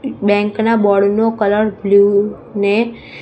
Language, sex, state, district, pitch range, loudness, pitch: Gujarati, female, Gujarat, Gandhinagar, 200-225 Hz, -14 LUFS, 205 Hz